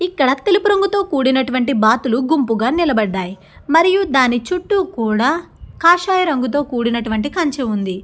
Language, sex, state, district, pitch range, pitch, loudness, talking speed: Telugu, female, Andhra Pradesh, Guntur, 235-345 Hz, 265 Hz, -16 LUFS, 120 wpm